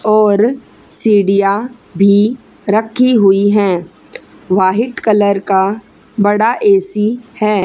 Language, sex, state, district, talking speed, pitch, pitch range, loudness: Hindi, female, Haryana, Charkhi Dadri, 95 wpm, 210 Hz, 195-220 Hz, -13 LUFS